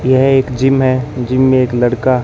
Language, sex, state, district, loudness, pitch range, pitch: Hindi, male, Rajasthan, Bikaner, -13 LUFS, 125-130 Hz, 130 Hz